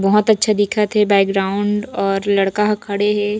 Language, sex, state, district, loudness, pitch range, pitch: Chhattisgarhi, female, Chhattisgarh, Raigarh, -17 LUFS, 195-210 Hz, 205 Hz